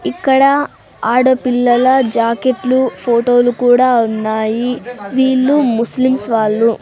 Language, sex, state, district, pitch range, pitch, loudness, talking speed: Telugu, female, Andhra Pradesh, Sri Satya Sai, 230-260 Hz, 245 Hz, -13 LUFS, 90 wpm